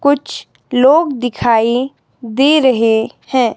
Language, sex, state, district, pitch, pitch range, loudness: Hindi, female, Himachal Pradesh, Shimla, 255 Hz, 230-280 Hz, -13 LUFS